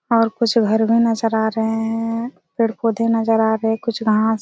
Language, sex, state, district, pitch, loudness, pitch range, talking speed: Hindi, female, Chhattisgarh, Raigarh, 225 Hz, -18 LUFS, 220-230 Hz, 205 wpm